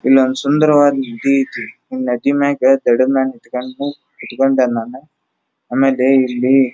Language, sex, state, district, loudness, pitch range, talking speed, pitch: Kannada, male, Karnataka, Dharwad, -15 LUFS, 130-140 Hz, 115 wpm, 135 Hz